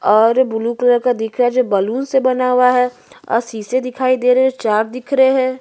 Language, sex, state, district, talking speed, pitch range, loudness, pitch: Hindi, female, Chhattisgarh, Bastar, 245 wpm, 230-255 Hz, -16 LUFS, 250 Hz